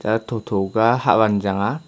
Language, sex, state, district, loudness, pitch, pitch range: Wancho, male, Arunachal Pradesh, Longding, -19 LUFS, 110 Hz, 100-115 Hz